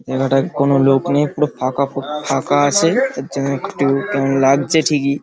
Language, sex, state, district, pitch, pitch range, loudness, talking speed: Bengali, male, West Bengal, Paschim Medinipur, 140 Hz, 135-150 Hz, -16 LUFS, 170 wpm